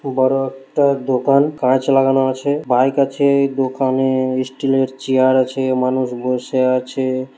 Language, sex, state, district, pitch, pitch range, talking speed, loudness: Bengali, male, West Bengal, Malda, 130 Hz, 130-135 Hz, 120 wpm, -17 LUFS